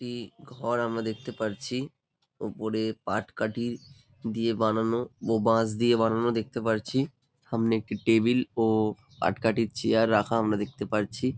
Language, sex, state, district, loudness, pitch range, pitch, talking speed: Bengali, male, West Bengal, Jalpaiguri, -28 LUFS, 110-120 Hz, 115 Hz, 135 wpm